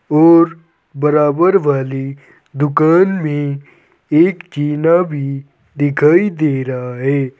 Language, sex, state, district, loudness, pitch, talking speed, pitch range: Hindi, male, Uttar Pradesh, Saharanpur, -14 LUFS, 150 Hz, 95 wpm, 140-165 Hz